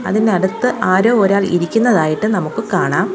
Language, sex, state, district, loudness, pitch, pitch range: Malayalam, female, Kerala, Kollam, -15 LUFS, 195 Hz, 185-220 Hz